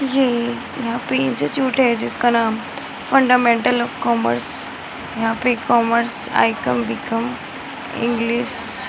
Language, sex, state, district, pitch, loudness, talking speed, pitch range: Hindi, female, Bihar, Muzaffarpur, 235 Hz, -18 LUFS, 115 wpm, 225-245 Hz